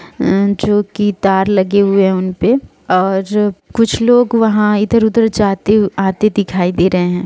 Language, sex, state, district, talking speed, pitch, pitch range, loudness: Hindi, female, Jharkhand, Sahebganj, 155 wpm, 205 Hz, 190-215 Hz, -13 LUFS